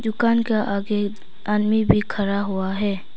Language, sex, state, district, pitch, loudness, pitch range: Hindi, female, Arunachal Pradesh, Papum Pare, 205 Hz, -22 LUFS, 200-215 Hz